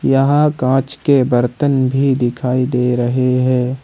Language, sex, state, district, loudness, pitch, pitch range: Hindi, male, Jharkhand, Ranchi, -15 LUFS, 130 Hz, 125-135 Hz